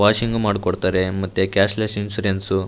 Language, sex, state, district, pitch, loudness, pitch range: Kannada, male, Karnataka, Raichur, 100 Hz, -20 LUFS, 95-105 Hz